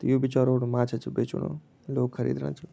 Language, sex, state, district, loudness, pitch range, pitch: Garhwali, male, Uttarakhand, Tehri Garhwal, -28 LUFS, 120-135 Hz, 130 Hz